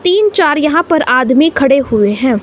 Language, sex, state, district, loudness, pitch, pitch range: Hindi, female, Himachal Pradesh, Shimla, -11 LUFS, 285 Hz, 255-330 Hz